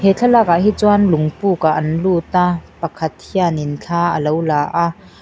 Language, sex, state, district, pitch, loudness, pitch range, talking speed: Mizo, female, Mizoram, Aizawl, 170 Hz, -16 LUFS, 155-195 Hz, 185 wpm